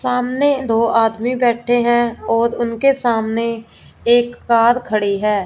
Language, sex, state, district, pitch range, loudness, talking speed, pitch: Hindi, female, Punjab, Fazilka, 225-245 Hz, -16 LUFS, 130 wpm, 235 Hz